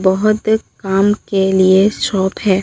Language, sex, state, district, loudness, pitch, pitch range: Hindi, female, Bihar, Katihar, -14 LUFS, 195 Hz, 190-210 Hz